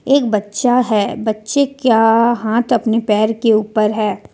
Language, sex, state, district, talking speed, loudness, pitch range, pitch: Hindi, female, Jharkhand, Ranchi, 150 wpm, -15 LUFS, 215-240 Hz, 225 Hz